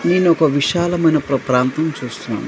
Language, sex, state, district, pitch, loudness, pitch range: Telugu, male, Andhra Pradesh, Manyam, 155 Hz, -17 LUFS, 135-170 Hz